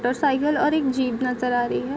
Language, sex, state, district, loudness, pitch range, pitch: Hindi, female, Bihar, Gopalganj, -22 LUFS, 250-280 Hz, 260 Hz